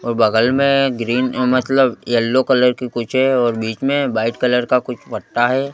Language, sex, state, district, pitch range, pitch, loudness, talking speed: Hindi, male, Madhya Pradesh, Bhopal, 120-130 Hz, 125 Hz, -17 LUFS, 200 wpm